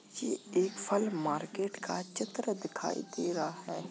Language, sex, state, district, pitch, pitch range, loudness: Hindi, female, Uttar Pradesh, Jalaun, 195 Hz, 175-200 Hz, -35 LUFS